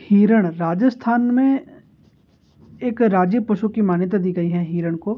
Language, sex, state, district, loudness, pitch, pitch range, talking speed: Hindi, male, Bihar, Muzaffarpur, -19 LUFS, 210 Hz, 180-240 Hz, 150 wpm